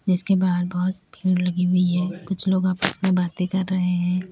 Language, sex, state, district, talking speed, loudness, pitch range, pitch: Hindi, female, Uttar Pradesh, Lalitpur, 210 wpm, -22 LUFS, 180-185 Hz, 180 Hz